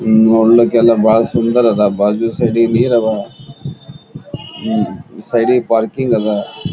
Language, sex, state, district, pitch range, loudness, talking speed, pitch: Kannada, male, Karnataka, Gulbarga, 110-120 Hz, -13 LUFS, 115 wpm, 115 Hz